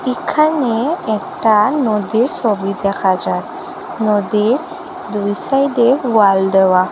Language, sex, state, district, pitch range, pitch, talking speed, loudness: Bengali, female, Assam, Hailakandi, 200-270 Hz, 220 Hz, 95 wpm, -15 LUFS